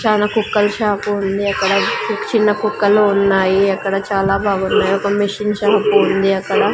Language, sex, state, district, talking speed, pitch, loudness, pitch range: Telugu, female, Andhra Pradesh, Sri Satya Sai, 140 wpm, 200 Hz, -15 LUFS, 195-210 Hz